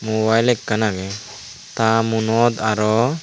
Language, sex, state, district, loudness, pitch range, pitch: Chakma, male, Tripura, Dhalai, -18 LUFS, 105-115 Hz, 110 Hz